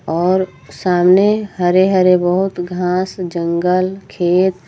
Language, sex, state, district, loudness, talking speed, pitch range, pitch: Hindi, female, Uttar Pradesh, Lucknow, -15 LUFS, 115 wpm, 175-190 Hz, 180 Hz